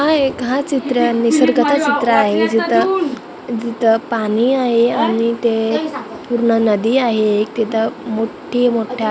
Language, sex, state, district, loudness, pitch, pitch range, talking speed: Marathi, female, Maharashtra, Gondia, -16 LUFS, 235 Hz, 225-260 Hz, 130 wpm